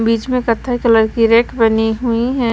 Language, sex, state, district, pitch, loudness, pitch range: Hindi, female, Maharashtra, Washim, 230 Hz, -14 LUFS, 225-245 Hz